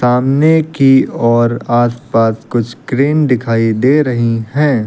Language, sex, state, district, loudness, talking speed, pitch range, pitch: Hindi, male, Uttar Pradesh, Lucknow, -13 LUFS, 125 wpm, 115-140 Hz, 125 Hz